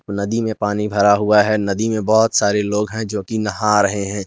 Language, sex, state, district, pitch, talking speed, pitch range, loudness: Hindi, male, Jharkhand, Garhwa, 105 Hz, 225 wpm, 100-110 Hz, -17 LUFS